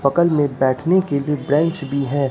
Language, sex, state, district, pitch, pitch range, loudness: Hindi, male, Bihar, Katihar, 145 Hz, 140-160 Hz, -19 LUFS